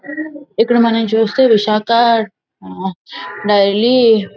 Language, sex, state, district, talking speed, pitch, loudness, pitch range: Telugu, female, Andhra Pradesh, Visakhapatnam, 80 wpm, 225 Hz, -13 LUFS, 205-235 Hz